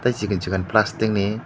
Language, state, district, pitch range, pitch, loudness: Kokborok, Tripura, Dhalai, 100-110 Hz, 105 Hz, -22 LUFS